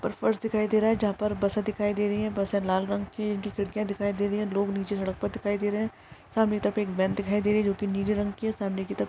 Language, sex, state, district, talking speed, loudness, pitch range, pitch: Hindi, female, Maharashtra, Dhule, 310 wpm, -28 LUFS, 200-210 Hz, 205 Hz